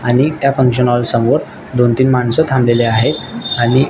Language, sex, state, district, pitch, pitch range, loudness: Marathi, male, Maharashtra, Nagpur, 125 Hz, 120-130 Hz, -14 LUFS